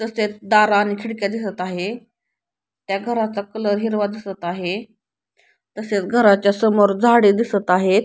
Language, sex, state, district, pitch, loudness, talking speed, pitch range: Marathi, female, Maharashtra, Pune, 205 Hz, -19 LUFS, 135 wpm, 200-220 Hz